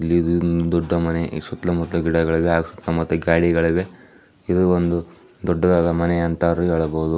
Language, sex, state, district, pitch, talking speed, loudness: Kannada, male, Karnataka, Chamarajanagar, 85 Hz, 125 wpm, -20 LUFS